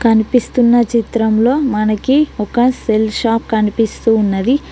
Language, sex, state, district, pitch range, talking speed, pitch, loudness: Telugu, female, Telangana, Mahabubabad, 220-245 Hz, 100 wpm, 230 Hz, -14 LUFS